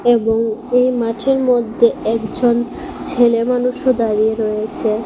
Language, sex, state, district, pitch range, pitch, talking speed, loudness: Bengali, female, Assam, Hailakandi, 225-250 Hz, 235 Hz, 95 wpm, -16 LUFS